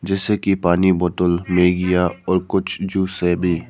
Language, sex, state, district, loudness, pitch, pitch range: Hindi, male, Arunachal Pradesh, Papum Pare, -18 LUFS, 90 Hz, 90-95 Hz